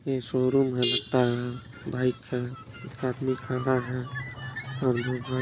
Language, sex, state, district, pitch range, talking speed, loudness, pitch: Hindi, female, Chhattisgarh, Balrampur, 125-130 Hz, 110 wpm, -28 LUFS, 125 Hz